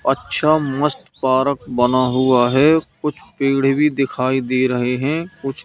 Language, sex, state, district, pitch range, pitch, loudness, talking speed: Hindi, male, Madhya Pradesh, Katni, 130-150 Hz, 135 Hz, -18 LUFS, 150 wpm